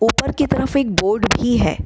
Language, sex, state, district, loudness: Hindi, female, Bihar, Kishanganj, -18 LUFS